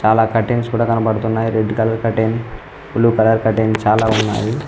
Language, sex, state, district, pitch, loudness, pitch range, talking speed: Telugu, male, Telangana, Mahabubabad, 110 Hz, -16 LUFS, 110-115 Hz, 155 wpm